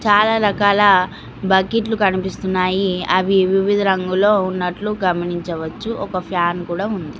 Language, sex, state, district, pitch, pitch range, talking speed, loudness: Telugu, female, Telangana, Mahabubabad, 190 Hz, 185-205 Hz, 110 wpm, -18 LUFS